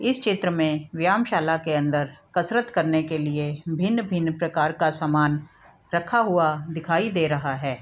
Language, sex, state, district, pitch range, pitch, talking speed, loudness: Hindi, female, Bihar, Sitamarhi, 150-180 Hz, 160 Hz, 160 wpm, -23 LUFS